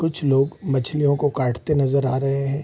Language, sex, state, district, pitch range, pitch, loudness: Hindi, male, Bihar, Sitamarhi, 135-145 Hz, 140 Hz, -21 LUFS